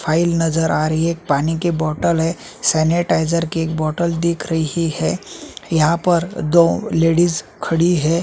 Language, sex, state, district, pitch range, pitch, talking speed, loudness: Hindi, male, Chhattisgarh, Sukma, 160-170 Hz, 165 Hz, 160 wpm, -18 LUFS